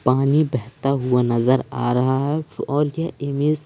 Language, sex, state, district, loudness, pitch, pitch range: Hindi, male, Madhya Pradesh, Umaria, -21 LUFS, 135 Hz, 125-150 Hz